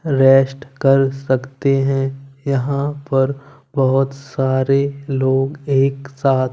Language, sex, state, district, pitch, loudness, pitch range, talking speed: Hindi, male, Punjab, Kapurthala, 135 Hz, -18 LUFS, 135-140 Hz, 100 wpm